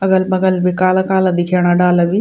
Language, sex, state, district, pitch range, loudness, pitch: Garhwali, female, Uttarakhand, Tehri Garhwal, 180-190 Hz, -14 LUFS, 185 Hz